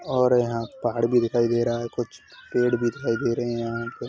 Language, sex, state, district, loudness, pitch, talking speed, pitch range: Hindi, male, Uttar Pradesh, Hamirpur, -24 LUFS, 120 Hz, 265 wpm, 115-120 Hz